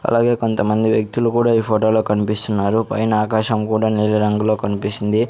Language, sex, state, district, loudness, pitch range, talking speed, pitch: Telugu, male, Andhra Pradesh, Sri Satya Sai, -18 LUFS, 105-110 Hz, 145 wpm, 110 Hz